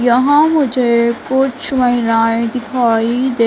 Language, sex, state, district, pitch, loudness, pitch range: Hindi, female, Madhya Pradesh, Katni, 245 Hz, -14 LUFS, 235-265 Hz